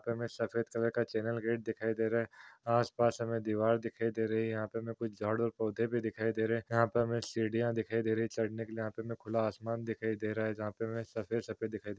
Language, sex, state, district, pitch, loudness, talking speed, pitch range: Hindi, male, Chhattisgarh, Raigarh, 115 Hz, -35 LUFS, 280 wpm, 110-115 Hz